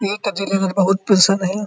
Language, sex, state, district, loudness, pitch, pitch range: Hindi, male, Uttar Pradesh, Muzaffarnagar, -17 LUFS, 195 Hz, 195-200 Hz